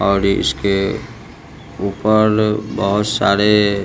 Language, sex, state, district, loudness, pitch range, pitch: Hindi, male, Bihar, West Champaran, -16 LUFS, 100-110 Hz, 105 Hz